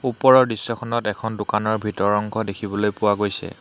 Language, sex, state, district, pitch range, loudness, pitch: Assamese, male, Assam, Hailakandi, 105-115 Hz, -21 LUFS, 105 Hz